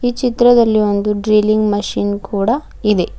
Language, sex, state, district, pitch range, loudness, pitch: Kannada, female, Karnataka, Bidar, 205-240 Hz, -15 LUFS, 210 Hz